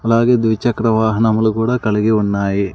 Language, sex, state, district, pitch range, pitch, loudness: Telugu, male, Andhra Pradesh, Sri Satya Sai, 105-115 Hz, 110 Hz, -15 LUFS